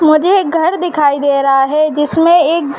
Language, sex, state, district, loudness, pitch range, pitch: Hindi, female, Uttar Pradesh, Gorakhpur, -12 LUFS, 285-335 Hz, 310 Hz